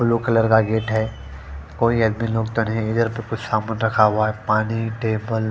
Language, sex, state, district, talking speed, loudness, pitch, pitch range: Hindi, female, Punjab, Fazilka, 140 wpm, -20 LUFS, 110 Hz, 110-115 Hz